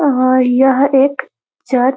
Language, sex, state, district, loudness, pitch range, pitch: Hindi, female, Bihar, Muzaffarpur, -12 LUFS, 255-270 Hz, 265 Hz